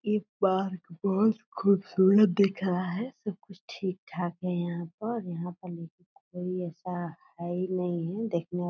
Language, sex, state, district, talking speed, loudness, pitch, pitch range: Hindi, female, Bihar, Purnia, 165 wpm, -30 LUFS, 185 Hz, 175-200 Hz